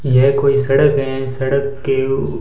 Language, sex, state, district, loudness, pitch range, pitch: Hindi, male, Rajasthan, Bikaner, -16 LUFS, 135-140 Hz, 135 Hz